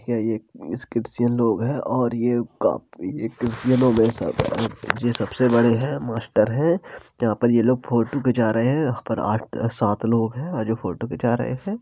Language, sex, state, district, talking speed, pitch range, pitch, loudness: Hindi, male, Uttar Pradesh, Jalaun, 175 wpm, 115-125 Hz, 120 Hz, -22 LUFS